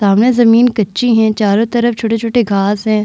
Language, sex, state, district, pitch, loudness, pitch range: Hindi, female, Bihar, Vaishali, 225 Hz, -12 LUFS, 210-235 Hz